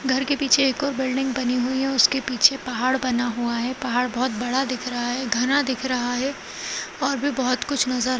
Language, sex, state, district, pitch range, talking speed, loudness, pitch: Kumaoni, female, Uttarakhand, Uttarkashi, 250-270 Hz, 225 wpm, -22 LUFS, 255 Hz